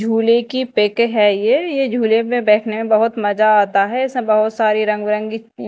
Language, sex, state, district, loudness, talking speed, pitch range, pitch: Hindi, female, Madhya Pradesh, Dhar, -16 LUFS, 190 wpm, 210-235 Hz, 220 Hz